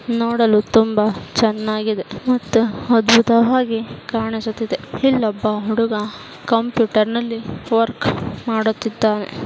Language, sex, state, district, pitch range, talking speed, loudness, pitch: Kannada, female, Karnataka, Shimoga, 215-230 Hz, 80 wpm, -18 LUFS, 225 Hz